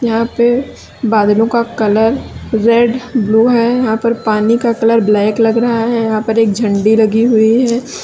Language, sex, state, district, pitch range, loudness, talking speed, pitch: Hindi, female, Uttar Pradesh, Lalitpur, 220-235 Hz, -12 LUFS, 170 wpm, 225 Hz